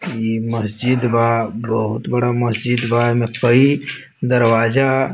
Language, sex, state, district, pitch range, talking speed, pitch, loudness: Bhojpuri, male, Bihar, Muzaffarpur, 115-125 Hz, 130 wpm, 120 Hz, -17 LUFS